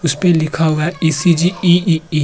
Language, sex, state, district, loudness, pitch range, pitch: Hindi, male, Uttar Pradesh, Muzaffarnagar, -14 LUFS, 160-175 Hz, 165 Hz